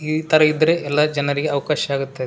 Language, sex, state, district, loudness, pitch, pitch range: Kannada, male, Karnataka, Raichur, -18 LUFS, 150 Hz, 140-155 Hz